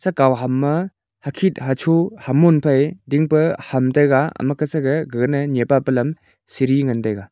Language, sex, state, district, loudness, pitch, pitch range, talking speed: Wancho, male, Arunachal Pradesh, Longding, -18 LUFS, 140 Hz, 130-155 Hz, 145 wpm